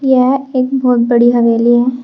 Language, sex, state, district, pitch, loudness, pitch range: Hindi, female, Uttar Pradesh, Shamli, 250 Hz, -11 LUFS, 240-260 Hz